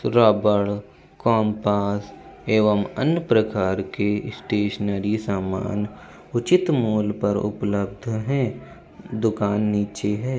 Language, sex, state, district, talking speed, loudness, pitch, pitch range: Hindi, male, Uttar Pradesh, Budaun, 105 wpm, -22 LUFS, 105 Hz, 100-110 Hz